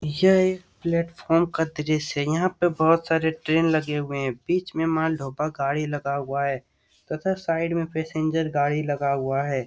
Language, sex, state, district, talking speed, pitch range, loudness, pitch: Hindi, male, Bihar, Jamui, 185 wpm, 145-165 Hz, -24 LUFS, 160 Hz